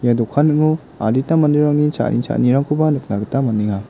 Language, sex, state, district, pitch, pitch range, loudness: Garo, male, Meghalaya, West Garo Hills, 135 Hz, 115-150 Hz, -17 LUFS